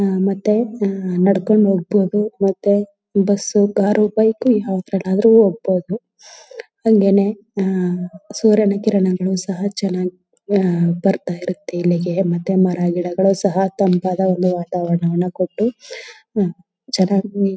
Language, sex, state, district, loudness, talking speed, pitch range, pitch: Kannada, female, Karnataka, Chamarajanagar, -17 LUFS, 85 wpm, 185-205 Hz, 195 Hz